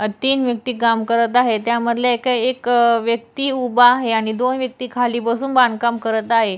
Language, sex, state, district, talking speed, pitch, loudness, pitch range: Marathi, female, Maharashtra, Dhule, 175 wpm, 235 Hz, -17 LUFS, 230-250 Hz